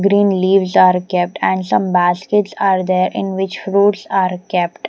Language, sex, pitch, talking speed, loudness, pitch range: English, female, 185 Hz, 170 wpm, -15 LUFS, 180-195 Hz